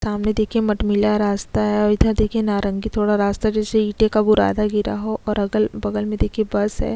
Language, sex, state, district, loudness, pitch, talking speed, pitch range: Hindi, female, Uttarakhand, Tehri Garhwal, -20 LUFS, 210 Hz, 205 wpm, 200-215 Hz